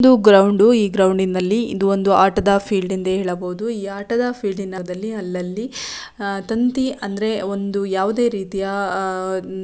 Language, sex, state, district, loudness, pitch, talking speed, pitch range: Kannada, female, Karnataka, Shimoga, -19 LUFS, 200 Hz, 155 wpm, 190-215 Hz